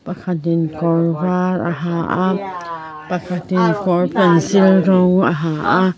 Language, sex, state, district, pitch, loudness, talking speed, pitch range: Mizo, female, Mizoram, Aizawl, 180 Hz, -16 LUFS, 160 wpm, 170-185 Hz